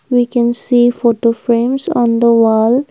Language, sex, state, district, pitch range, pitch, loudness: English, female, Assam, Kamrup Metropolitan, 230-245 Hz, 240 Hz, -13 LUFS